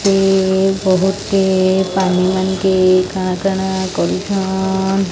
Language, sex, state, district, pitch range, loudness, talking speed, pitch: Odia, male, Odisha, Sambalpur, 185-195 Hz, -15 LUFS, 80 wpm, 190 Hz